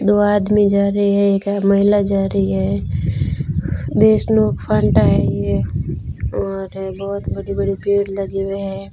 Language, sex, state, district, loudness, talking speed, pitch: Hindi, female, Rajasthan, Bikaner, -17 LUFS, 120 wpm, 195 Hz